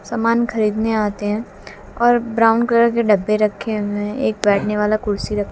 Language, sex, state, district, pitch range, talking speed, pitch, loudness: Hindi, female, Haryana, Jhajjar, 205-230 Hz, 185 wpm, 215 Hz, -18 LUFS